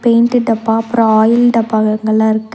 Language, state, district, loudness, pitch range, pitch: Tamil, Tamil Nadu, Nilgiris, -12 LUFS, 220-235 Hz, 225 Hz